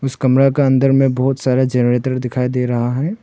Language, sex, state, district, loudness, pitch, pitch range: Hindi, male, Arunachal Pradesh, Papum Pare, -16 LUFS, 130 Hz, 125-135 Hz